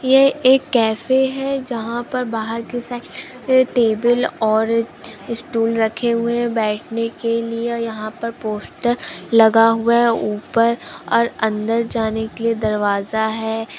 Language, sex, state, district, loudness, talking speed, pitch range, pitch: Hindi, female, Andhra Pradesh, Chittoor, -18 LUFS, 140 wpm, 220-240 Hz, 230 Hz